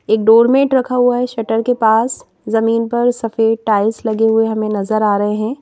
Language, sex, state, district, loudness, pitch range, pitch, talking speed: Hindi, female, Madhya Pradesh, Bhopal, -15 LUFS, 220-240 Hz, 225 Hz, 205 wpm